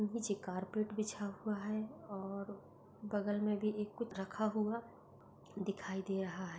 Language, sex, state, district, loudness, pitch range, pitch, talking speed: Hindi, female, Maharashtra, Pune, -40 LUFS, 195-215 Hz, 205 Hz, 155 wpm